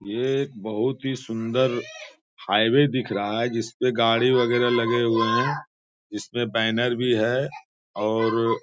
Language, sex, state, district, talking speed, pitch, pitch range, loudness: Hindi, male, Bihar, Bhagalpur, 155 wpm, 120 Hz, 115-125 Hz, -23 LUFS